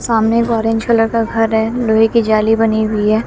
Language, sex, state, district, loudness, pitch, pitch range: Hindi, female, Bihar, West Champaran, -14 LUFS, 225 Hz, 220-230 Hz